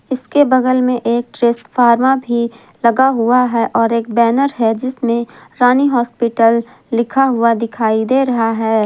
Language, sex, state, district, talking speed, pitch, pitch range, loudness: Hindi, female, Jharkhand, Ranchi, 150 wpm, 235 Hz, 230-255 Hz, -14 LUFS